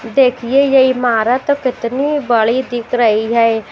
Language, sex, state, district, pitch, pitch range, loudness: Hindi, female, Maharashtra, Washim, 245 Hz, 230-265 Hz, -14 LUFS